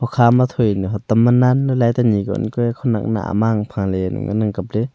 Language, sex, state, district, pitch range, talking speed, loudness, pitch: Wancho, male, Arunachal Pradesh, Longding, 105-120 Hz, 280 wpm, -17 LUFS, 110 Hz